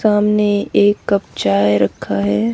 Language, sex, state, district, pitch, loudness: Hindi, female, Haryana, Rohtak, 200 Hz, -16 LUFS